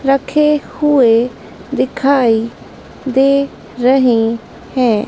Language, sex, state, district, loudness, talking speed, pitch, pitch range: Hindi, female, Madhya Pradesh, Dhar, -14 LUFS, 70 wpm, 260 Hz, 235-275 Hz